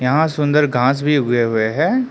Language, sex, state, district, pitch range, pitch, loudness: Hindi, male, Arunachal Pradesh, Lower Dibang Valley, 120-155 Hz, 145 Hz, -16 LUFS